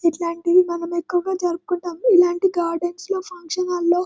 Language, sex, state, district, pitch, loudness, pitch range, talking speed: Telugu, male, Telangana, Karimnagar, 350 Hz, -21 LUFS, 345-365 Hz, 160 wpm